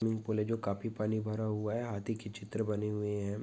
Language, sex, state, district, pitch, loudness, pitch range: Hindi, male, Goa, North and South Goa, 105 Hz, -36 LUFS, 105-110 Hz